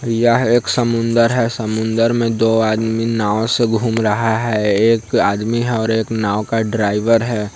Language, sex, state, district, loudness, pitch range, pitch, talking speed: Hindi, male, Bihar, Sitamarhi, -16 LUFS, 110-115 Hz, 115 Hz, 165 wpm